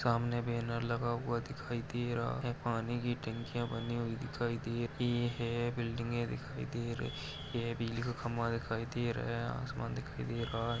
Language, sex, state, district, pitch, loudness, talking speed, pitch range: Hindi, female, Uttar Pradesh, Varanasi, 120 Hz, -37 LUFS, 190 wpm, 115-120 Hz